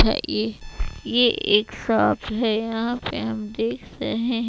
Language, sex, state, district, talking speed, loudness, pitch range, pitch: Hindi, female, Chhattisgarh, Raipur, 135 wpm, -23 LUFS, 140-230 Hz, 225 Hz